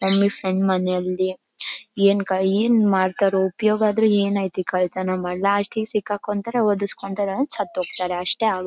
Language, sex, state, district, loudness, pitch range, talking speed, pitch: Kannada, female, Karnataka, Bellary, -21 LUFS, 185-210 Hz, 130 wpm, 200 Hz